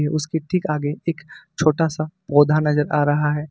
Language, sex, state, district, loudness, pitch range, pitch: Hindi, male, Jharkhand, Ranchi, -20 LUFS, 150-160 Hz, 155 Hz